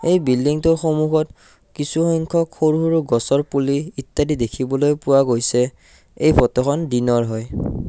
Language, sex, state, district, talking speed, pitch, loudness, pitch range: Assamese, male, Assam, Kamrup Metropolitan, 130 wpm, 140 Hz, -19 LUFS, 125-155 Hz